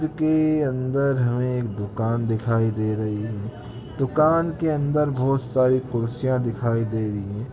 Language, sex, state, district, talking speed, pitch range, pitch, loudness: Hindi, male, Andhra Pradesh, Krishna, 145 wpm, 110-140 Hz, 125 Hz, -23 LUFS